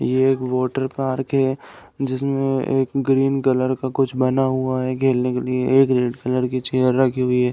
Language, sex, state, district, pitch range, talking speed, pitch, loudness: Hindi, male, Uttar Pradesh, Deoria, 130-135 Hz, 200 wpm, 130 Hz, -20 LUFS